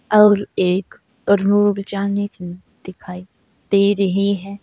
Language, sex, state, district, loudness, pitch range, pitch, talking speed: Hindi, female, Uttar Pradesh, Saharanpur, -18 LUFS, 185-205 Hz, 200 Hz, 130 wpm